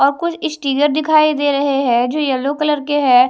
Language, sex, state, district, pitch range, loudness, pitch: Hindi, female, Odisha, Malkangiri, 275-300 Hz, -16 LUFS, 285 Hz